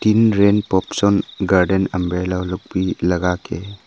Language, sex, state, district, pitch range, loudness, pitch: Hindi, male, Arunachal Pradesh, Papum Pare, 90-100 Hz, -18 LUFS, 95 Hz